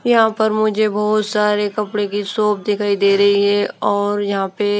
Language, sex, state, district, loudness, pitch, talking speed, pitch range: Hindi, female, Himachal Pradesh, Shimla, -17 LUFS, 205 Hz, 190 wpm, 205-215 Hz